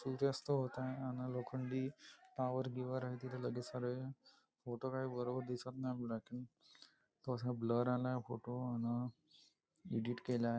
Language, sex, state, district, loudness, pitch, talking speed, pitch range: Marathi, male, Maharashtra, Nagpur, -42 LUFS, 125 Hz, 155 wpm, 125-130 Hz